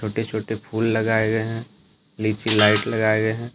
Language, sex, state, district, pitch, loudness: Hindi, male, Jharkhand, Deoghar, 110 Hz, -19 LUFS